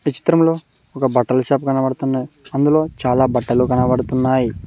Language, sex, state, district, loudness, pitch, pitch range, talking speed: Telugu, male, Telangana, Mahabubabad, -17 LUFS, 130 Hz, 125-140 Hz, 130 wpm